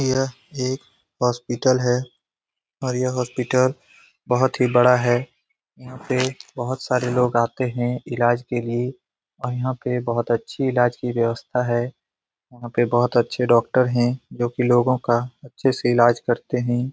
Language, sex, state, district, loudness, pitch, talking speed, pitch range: Hindi, male, Bihar, Lakhisarai, -21 LUFS, 125 Hz, 155 wpm, 120-130 Hz